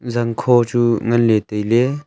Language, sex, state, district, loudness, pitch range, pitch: Wancho, male, Arunachal Pradesh, Longding, -17 LUFS, 115-120 Hz, 120 Hz